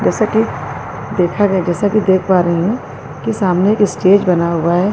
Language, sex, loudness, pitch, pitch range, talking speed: Urdu, female, -15 LUFS, 185 Hz, 170-205 Hz, 205 wpm